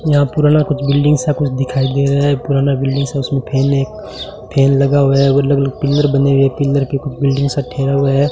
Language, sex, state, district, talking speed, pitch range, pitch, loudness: Hindi, male, Rajasthan, Bikaner, 245 wpm, 135-140 Hz, 140 Hz, -14 LUFS